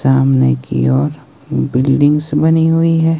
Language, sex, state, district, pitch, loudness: Hindi, male, Himachal Pradesh, Shimla, 145 Hz, -13 LUFS